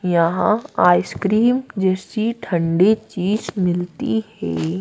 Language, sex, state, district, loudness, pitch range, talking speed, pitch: Hindi, female, Madhya Pradesh, Dhar, -19 LUFS, 170-220 Hz, 85 wpm, 190 Hz